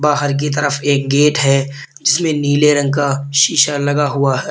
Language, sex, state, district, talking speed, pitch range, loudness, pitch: Hindi, male, Uttar Pradesh, Lalitpur, 185 wpm, 140-150 Hz, -14 LUFS, 145 Hz